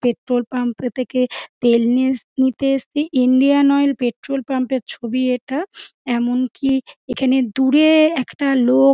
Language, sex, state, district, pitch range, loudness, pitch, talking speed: Bengali, female, West Bengal, Dakshin Dinajpur, 250-275 Hz, -18 LUFS, 260 Hz, 135 wpm